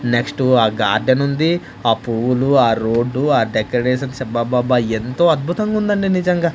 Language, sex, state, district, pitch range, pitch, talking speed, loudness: Telugu, male, Andhra Pradesh, Manyam, 120-160 Hz, 130 Hz, 135 wpm, -17 LUFS